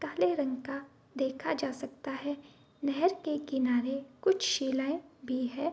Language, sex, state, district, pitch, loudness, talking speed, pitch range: Hindi, female, Bihar, Bhagalpur, 275 Hz, -33 LUFS, 145 wpm, 265-300 Hz